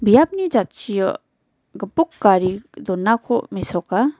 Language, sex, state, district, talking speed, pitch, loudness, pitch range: Garo, female, Meghalaya, West Garo Hills, 85 wpm, 225 Hz, -19 LUFS, 190-265 Hz